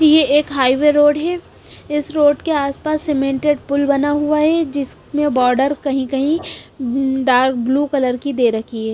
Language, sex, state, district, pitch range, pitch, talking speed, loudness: Hindi, female, Punjab, Pathankot, 265-295 Hz, 280 Hz, 160 wpm, -17 LUFS